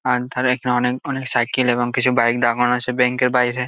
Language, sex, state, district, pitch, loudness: Bengali, male, West Bengal, Jalpaiguri, 125 Hz, -19 LUFS